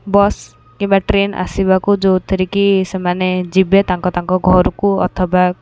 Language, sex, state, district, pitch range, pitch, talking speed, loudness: Odia, female, Odisha, Khordha, 180-195 Hz, 190 Hz, 140 wpm, -15 LUFS